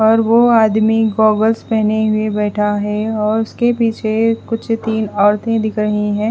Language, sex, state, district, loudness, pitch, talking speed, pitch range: Hindi, female, Bihar, West Champaran, -15 LUFS, 220 Hz, 160 wpm, 210-225 Hz